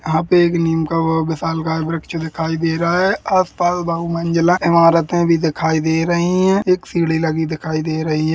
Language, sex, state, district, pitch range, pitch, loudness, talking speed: Hindi, male, Chhattisgarh, Rajnandgaon, 160-175 Hz, 165 Hz, -17 LUFS, 210 wpm